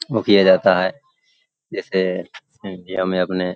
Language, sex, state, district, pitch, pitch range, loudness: Hindi, male, Uttar Pradesh, Hamirpur, 95 Hz, 90-100 Hz, -18 LUFS